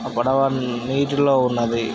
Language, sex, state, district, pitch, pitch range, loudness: Telugu, male, Andhra Pradesh, Krishna, 130 Hz, 120-135 Hz, -20 LUFS